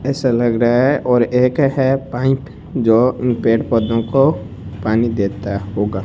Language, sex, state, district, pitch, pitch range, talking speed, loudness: Hindi, male, Rajasthan, Bikaner, 120 Hz, 110-130 Hz, 160 wpm, -16 LUFS